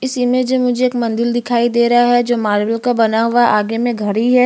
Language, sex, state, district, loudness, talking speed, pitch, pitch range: Hindi, female, Chhattisgarh, Bastar, -15 LUFS, 270 wpm, 240 Hz, 225-245 Hz